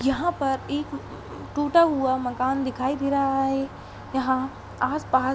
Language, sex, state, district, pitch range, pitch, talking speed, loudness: Hindi, female, Uttar Pradesh, Hamirpur, 260-285 Hz, 270 Hz, 155 wpm, -25 LUFS